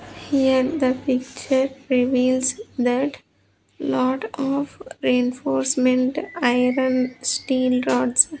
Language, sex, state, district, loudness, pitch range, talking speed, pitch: English, female, Andhra Pradesh, Sri Satya Sai, -21 LUFS, 250-265 Hz, 80 wpm, 255 Hz